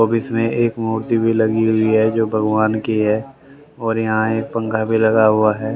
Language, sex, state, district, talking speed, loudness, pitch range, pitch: Hindi, male, Haryana, Rohtak, 210 wpm, -17 LUFS, 110-115 Hz, 110 Hz